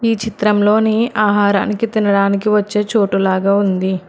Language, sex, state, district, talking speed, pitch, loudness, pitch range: Telugu, female, Telangana, Hyderabad, 120 wpm, 210 Hz, -15 LUFS, 200-215 Hz